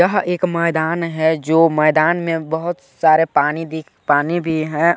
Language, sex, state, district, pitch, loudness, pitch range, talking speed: Hindi, male, Chhattisgarh, Balrampur, 160 Hz, -17 LUFS, 155-170 Hz, 170 wpm